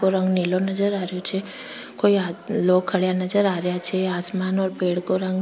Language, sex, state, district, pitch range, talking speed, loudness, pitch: Rajasthani, female, Rajasthan, Churu, 180-195 Hz, 210 wpm, -21 LUFS, 185 Hz